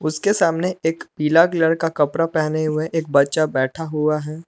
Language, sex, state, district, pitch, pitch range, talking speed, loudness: Hindi, male, Jharkhand, Palamu, 155 Hz, 155-165 Hz, 190 wpm, -19 LUFS